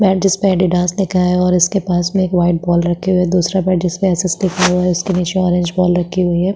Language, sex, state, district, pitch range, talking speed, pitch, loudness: Hindi, female, Chhattisgarh, Sukma, 180-185 Hz, 295 wpm, 180 Hz, -15 LUFS